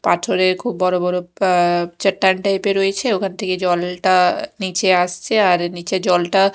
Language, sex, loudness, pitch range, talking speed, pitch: Bengali, female, -17 LUFS, 180-195 Hz, 155 wpm, 185 Hz